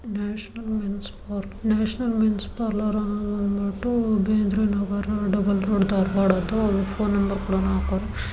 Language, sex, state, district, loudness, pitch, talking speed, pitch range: Kannada, female, Karnataka, Dharwad, -24 LUFS, 205 Hz, 100 wpm, 200-215 Hz